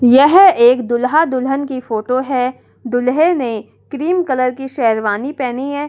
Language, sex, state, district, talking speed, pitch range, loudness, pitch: Hindi, female, Delhi, New Delhi, 155 wpm, 245-285 Hz, -15 LUFS, 255 Hz